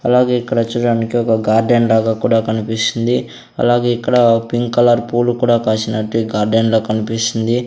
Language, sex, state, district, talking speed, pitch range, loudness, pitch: Telugu, male, Andhra Pradesh, Sri Satya Sai, 150 wpm, 110-120 Hz, -15 LUFS, 115 Hz